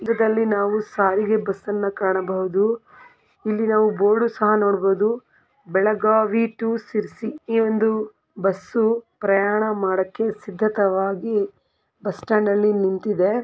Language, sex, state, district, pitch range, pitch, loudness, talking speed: Kannada, female, Karnataka, Belgaum, 200-220 Hz, 210 Hz, -21 LUFS, 110 wpm